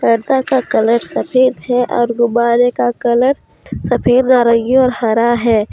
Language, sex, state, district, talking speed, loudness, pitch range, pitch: Hindi, female, Jharkhand, Deoghar, 145 wpm, -13 LUFS, 235-255 Hz, 240 Hz